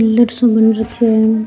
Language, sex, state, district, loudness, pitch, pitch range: Rajasthani, female, Rajasthan, Churu, -13 LUFS, 225 Hz, 220-235 Hz